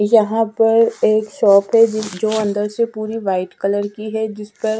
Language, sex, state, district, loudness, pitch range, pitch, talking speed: Hindi, female, Punjab, Fazilka, -17 LUFS, 205-225 Hz, 215 Hz, 185 wpm